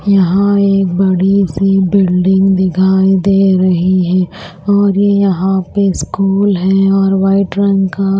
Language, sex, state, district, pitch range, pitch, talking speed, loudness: Hindi, female, Maharashtra, Washim, 185-195 Hz, 195 Hz, 140 wpm, -11 LUFS